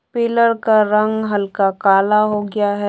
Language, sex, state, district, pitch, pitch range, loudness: Hindi, female, Jharkhand, Deoghar, 210 Hz, 205-220 Hz, -16 LUFS